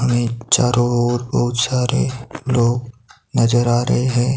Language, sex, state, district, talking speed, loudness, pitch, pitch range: Hindi, male, Himachal Pradesh, Shimla, 125 wpm, -18 LUFS, 120 Hz, 120-125 Hz